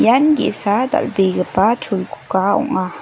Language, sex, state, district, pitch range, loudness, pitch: Garo, female, Meghalaya, West Garo Hills, 200-265 Hz, -17 LUFS, 230 Hz